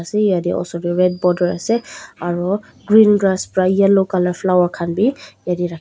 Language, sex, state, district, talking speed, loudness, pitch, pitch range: Nagamese, female, Nagaland, Dimapur, 175 wpm, -17 LUFS, 185 Hz, 175-200 Hz